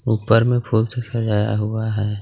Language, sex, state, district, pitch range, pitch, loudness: Hindi, male, Jharkhand, Garhwa, 105-115 Hz, 110 Hz, -20 LUFS